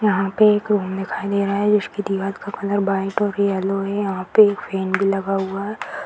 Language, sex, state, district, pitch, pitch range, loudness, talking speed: Hindi, female, Bihar, Purnia, 200 Hz, 195-205 Hz, -20 LUFS, 240 wpm